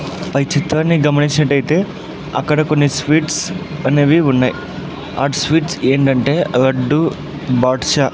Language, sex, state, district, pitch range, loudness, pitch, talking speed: Telugu, male, Andhra Pradesh, Sri Satya Sai, 140-155 Hz, -15 LUFS, 145 Hz, 105 wpm